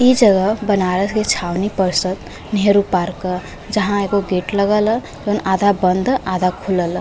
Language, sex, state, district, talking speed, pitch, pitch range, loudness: Bhojpuri, female, Uttar Pradesh, Varanasi, 180 wpm, 195 Hz, 185-210 Hz, -17 LUFS